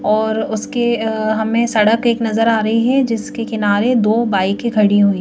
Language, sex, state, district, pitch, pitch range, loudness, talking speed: Hindi, female, Madhya Pradesh, Bhopal, 220 Hz, 215-235 Hz, -16 LUFS, 195 wpm